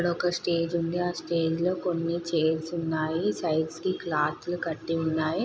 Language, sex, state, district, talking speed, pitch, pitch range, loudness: Telugu, female, Andhra Pradesh, Guntur, 175 wpm, 170 Hz, 160-175 Hz, -28 LUFS